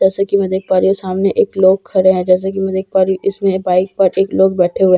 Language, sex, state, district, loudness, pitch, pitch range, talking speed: Hindi, female, Bihar, Katihar, -14 LUFS, 190 Hz, 185-195 Hz, 335 wpm